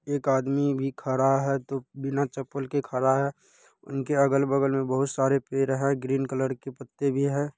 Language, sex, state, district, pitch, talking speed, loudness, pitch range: Hindi, male, Bihar, Purnia, 135 Hz, 190 wpm, -26 LUFS, 135-140 Hz